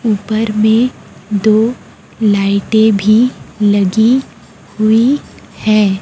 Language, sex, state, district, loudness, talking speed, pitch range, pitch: Hindi, female, Chhattisgarh, Raipur, -13 LUFS, 80 wpm, 205-225 Hz, 215 Hz